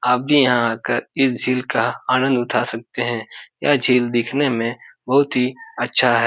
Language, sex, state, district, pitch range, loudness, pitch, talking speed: Hindi, male, Bihar, Supaul, 120-135 Hz, -19 LUFS, 125 Hz, 200 wpm